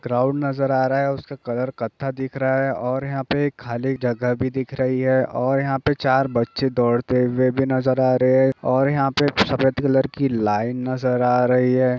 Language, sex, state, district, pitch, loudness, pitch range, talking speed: Hindi, male, Chhattisgarh, Rajnandgaon, 130 Hz, -21 LUFS, 125-135 Hz, 215 wpm